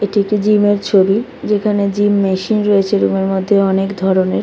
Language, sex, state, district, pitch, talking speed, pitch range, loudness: Bengali, female, West Bengal, Kolkata, 200 Hz, 205 wpm, 195-210 Hz, -14 LUFS